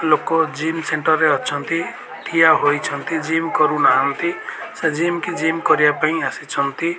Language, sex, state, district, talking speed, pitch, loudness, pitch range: Odia, male, Odisha, Malkangiri, 135 wpm, 160 Hz, -18 LUFS, 155-165 Hz